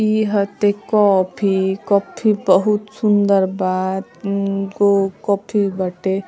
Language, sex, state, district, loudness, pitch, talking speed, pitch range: Bhojpuri, female, Uttar Pradesh, Ghazipur, -18 LUFS, 200 Hz, 95 wpm, 190-205 Hz